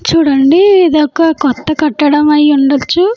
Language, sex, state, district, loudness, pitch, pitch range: Telugu, female, Andhra Pradesh, Anantapur, -10 LUFS, 300 Hz, 290-330 Hz